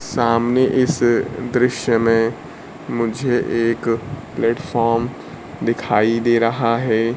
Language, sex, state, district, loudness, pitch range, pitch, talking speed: Hindi, male, Bihar, Kaimur, -18 LUFS, 115-125 Hz, 115 Hz, 90 wpm